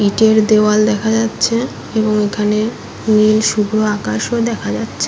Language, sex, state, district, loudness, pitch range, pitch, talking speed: Bengali, female, West Bengal, Paschim Medinipur, -15 LUFS, 210-220 Hz, 215 Hz, 140 wpm